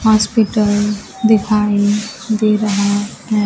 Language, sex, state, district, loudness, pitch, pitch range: Hindi, female, Bihar, Kaimur, -15 LUFS, 210 Hz, 205-215 Hz